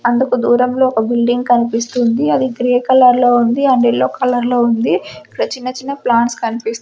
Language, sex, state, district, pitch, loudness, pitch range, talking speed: Telugu, female, Andhra Pradesh, Sri Satya Sai, 245 Hz, -14 LUFS, 235-255 Hz, 160 wpm